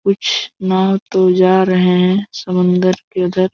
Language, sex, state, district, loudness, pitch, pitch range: Hindi, male, Jharkhand, Jamtara, -14 LUFS, 185 Hz, 185-190 Hz